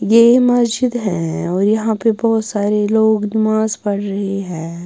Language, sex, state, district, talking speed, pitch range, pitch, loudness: Hindi, female, Bihar, West Champaran, 160 wpm, 200-225 Hz, 215 Hz, -16 LUFS